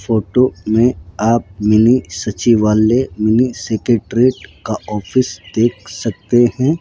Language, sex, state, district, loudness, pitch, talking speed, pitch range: Hindi, male, Rajasthan, Jaipur, -15 LUFS, 115 Hz, 105 wpm, 105-125 Hz